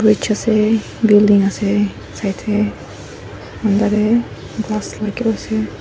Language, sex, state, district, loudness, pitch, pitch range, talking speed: Nagamese, female, Nagaland, Dimapur, -17 LUFS, 210 Hz, 205-220 Hz, 105 wpm